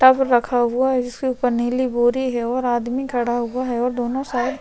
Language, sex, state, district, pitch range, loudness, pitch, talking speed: Hindi, female, Chhattisgarh, Sukma, 240-260 Hz, -20 LUFS, 245 Hz, 210 wpm